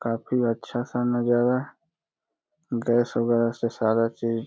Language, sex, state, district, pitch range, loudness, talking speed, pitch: Hindi, male, Uttar Pradesh, Deoria, 115-125 Hz, -25 LUFS, 135 wpm, 120 Hz